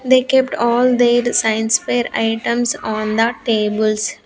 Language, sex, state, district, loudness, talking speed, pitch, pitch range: English, female, Andhra Pradesh, Sri Satya Sai, -16 LUFS, 140 wpm, 235 Hz, 220-245 Hz